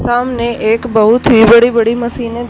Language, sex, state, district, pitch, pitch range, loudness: Hindi, female, Haryana, Charkhi Dadri, 235 Hz, 230-240 Hz, -10 LUFS